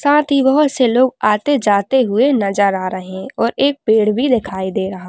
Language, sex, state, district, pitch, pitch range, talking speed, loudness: Hindi, female, Uttar Pradesh, Jalaun, 230 Hz, 200-270 Hz, 225 wpm, -15 LUFS